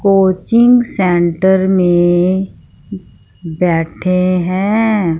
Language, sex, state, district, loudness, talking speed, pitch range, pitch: Hindi, female, Punjab, Fazilka, -13 LUFS, 60 wpm, 175-195 Hz, 185 Hz